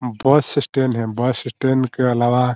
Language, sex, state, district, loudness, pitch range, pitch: Hindi, male, Bihar, Muzaffarpur, -18 LUFS, 120-130 Hz, 125 Hz